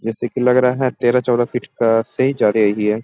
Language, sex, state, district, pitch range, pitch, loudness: Hindi, male, Bihar, Bhagalpur, 115-125 Hz, 120 Hz, -17 LUFS